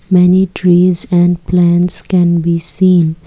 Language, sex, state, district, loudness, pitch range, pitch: English, female, Assam, Kamrup Metropolitan, -11 LUFS, 170-180 Hz, 175 Hz